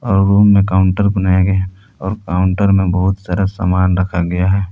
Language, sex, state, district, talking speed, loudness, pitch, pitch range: Hindi, male, Jharkhand, Palamu, 205 wpm, -14 LUFS, 95 Hz, 95-100 Hz